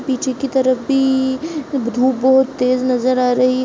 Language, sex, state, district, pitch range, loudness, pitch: Hindi, female, Uttar Pradesh, Jalaun, 255-265 Hz, -16 LUFS, 260 Hz